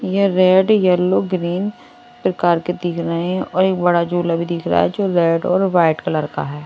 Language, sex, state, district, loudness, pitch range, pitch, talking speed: Hindi, male, Odisha, Malkangiri, -17 LUFS, 170-185 Hz, 175 Hz, 215 wpm